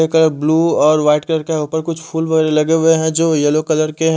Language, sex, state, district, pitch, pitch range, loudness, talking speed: Hindi, male, Chandigarh, Chandigarh, 160 Hz, 155-160 Hz, -15 LUFS, 245 wpm